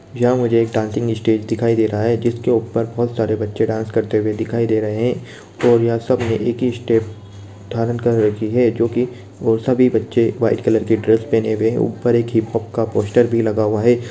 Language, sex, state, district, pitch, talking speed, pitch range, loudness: Hindi, male, Bihar, Begusarai, 115 Hz, 215 wpm, 110-120 Hz, -18 LUFS